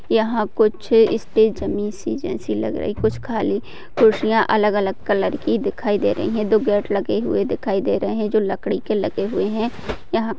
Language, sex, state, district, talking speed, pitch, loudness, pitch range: Hindi, female, Maharashtra, Pune, 200 wpm, 215 Hz, -20 LUFS, 205-220 Hz